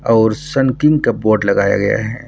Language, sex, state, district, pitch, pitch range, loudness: Hindi, male, Bihar, Purnia, 115 Hz, 110-135 Hz, -15 LUFS